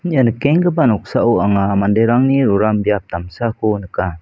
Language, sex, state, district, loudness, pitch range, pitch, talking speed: Garo, male, Meghalaya, South Garo Hills, -15 LUFS, 100-125 Hz, 110 Hz, 130 wpm